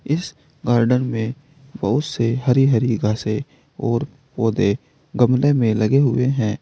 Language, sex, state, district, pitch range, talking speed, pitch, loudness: Hindi, male, Uttar Pradesh, Saharanpur, 115-140 Hz, 135 wpm, 125 Hz, -19 LUFS